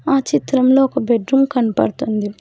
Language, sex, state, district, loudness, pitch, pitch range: Telugu, female, Telangana, Hyderabad, -16 LUFS, 260 Hz, 230-270 Hz